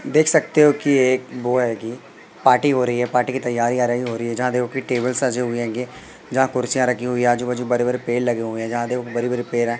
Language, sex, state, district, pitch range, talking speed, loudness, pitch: Hindi, male, Madhya Pradesh, Katni, 120-130 Hz, 275 wpm, -20 LUFS, 125 Hz